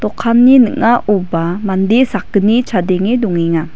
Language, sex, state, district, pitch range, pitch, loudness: Garo, female, Meghalaya, West Garo Hills, 185-235 Hz, 205 Hz, -12 LUFS